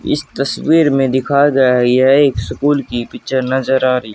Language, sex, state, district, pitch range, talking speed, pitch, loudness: Hindi, male, Haryana, Jhajjar, 125-140 Hz, 200 wpm, 130 Hz, -14 LUFS